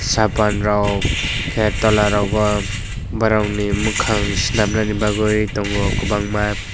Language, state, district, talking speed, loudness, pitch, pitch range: Kokborok, Tripura, West Tripura, 135 wpm, -18 LUFS, 105 Hz, 100-110 Hz